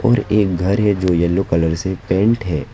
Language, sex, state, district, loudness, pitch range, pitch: Hindi, male, West Bengal, Alipurduar, -17 LUFS, 85-105 Hz, 95 Hz